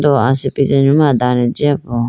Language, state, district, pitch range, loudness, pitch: Idu Mishmi, Arunachal Pradesh, Lower Dibang Valley, 125-145 Hz, -14 LUFS, 135 Hz